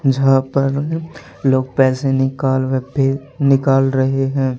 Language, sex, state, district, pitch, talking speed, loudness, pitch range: Hindi, male, Haryana, Charkhi Dadri, 135 Hz, 105 wpm, -17 LUFS, 130-135 Hz